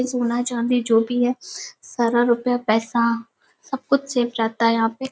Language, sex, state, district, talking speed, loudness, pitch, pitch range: Hindi, female, Uttar Pradesh, Hamirpur, 175 wpm, -21 LUFS, 240 Hz, 230-245 Hz